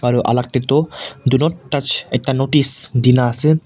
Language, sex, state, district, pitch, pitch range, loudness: Nagamese, male, Nagaland, Kohima, 135 Hz, 125-150 Hz, -16 LUFS